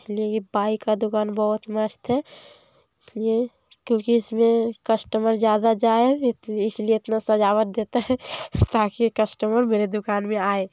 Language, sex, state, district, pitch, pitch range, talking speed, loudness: Hindi, female, Bihar, Lakhisarai, 220 Hz, 215-230 Hz, 130 wpm, -22 LUFS